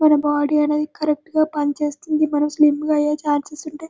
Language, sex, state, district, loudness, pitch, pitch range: Telugu, male, Telangana, Karimnagar, -19 LUFS, 300 Hz, 295-305 Hz